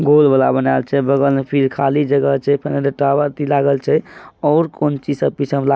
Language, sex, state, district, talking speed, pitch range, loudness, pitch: Maithili, male, Bihar, Madhepura, 210 wpm, 140-145 Hz, -16 LUFS, 140 Hz